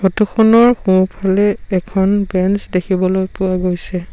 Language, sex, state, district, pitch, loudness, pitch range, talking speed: Assamese, male, Assam, Sonitpur, 190 Hz, -15 LUFS, 185-205 Hz, 115 wpm